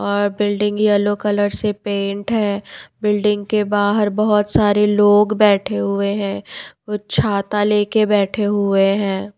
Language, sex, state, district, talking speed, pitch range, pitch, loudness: Hindi, female, Himachal Pradesh, Shimla, 145 wpm, 200-210 Hz, 205 Hz, -17 LUFS